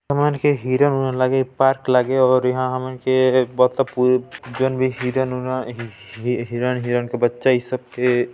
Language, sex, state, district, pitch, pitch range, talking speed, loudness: Chhattisgarhi, male, Chhattisgarh, Balrampur, 130 Hz, 125-130 Hz, 150 wpm, -19 LUFS